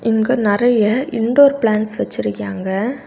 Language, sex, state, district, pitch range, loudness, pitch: Tamil, female, Tamil Nadu, Kanyakumari, 205-245 Hz, -16 LUFS, 225 Hz